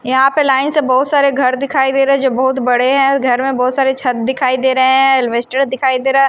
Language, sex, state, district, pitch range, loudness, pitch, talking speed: Hindi, female, Himachal Pradesh, Shimla, 255-275 Hz, -13 LUFS, 265 Hz, 275 wpm